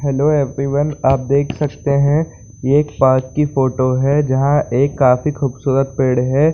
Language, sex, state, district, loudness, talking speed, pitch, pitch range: Hindi, male, Bihar, Saran, -16 LUFS, 165 wpm, 140 Hz, 130-145 Hz